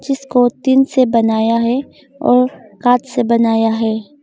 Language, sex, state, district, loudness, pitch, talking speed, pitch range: Hindi, female, Arunachal Pradesh, Longding, -15 LUFS, 245 Hz, 140 wpm, 225-265 Hz